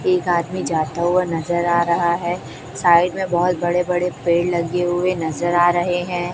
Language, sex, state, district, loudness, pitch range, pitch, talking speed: Hindi, male, Chhattisgarh, Raipur, -19 LUFS, 170-180 Hz, 175 Hz, 190 wpm